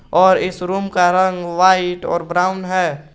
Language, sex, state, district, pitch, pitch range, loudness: Hindi, male, Jharkhand, Garhwa, 180 Hz, 175-185 Hz, -16 LUFS